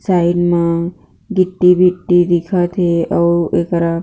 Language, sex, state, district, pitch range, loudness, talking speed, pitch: Chhattisgarhi, female, Chhattisgarh, Jashpur, 170-180 Hz, -14 LUFS, 120 wpm, 175 Hz